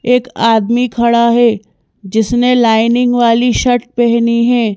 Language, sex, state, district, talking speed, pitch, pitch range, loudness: Hindi, female, Madhya Pradesh, Bhopal, 125 wpm, 235 Hz, 230-245 Hz, -12 LUFS